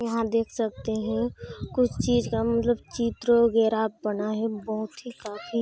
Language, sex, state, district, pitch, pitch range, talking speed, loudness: Hindi, female, Chhattisgarh, Sarguja, 230 Hz, 220-235 Hz, 160 wpm, -26 LUFS